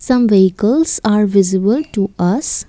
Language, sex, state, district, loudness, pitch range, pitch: English, female, Assam, Kamrup Metropolitan, -14 LUFS, 195-250 Hz, 210 Hz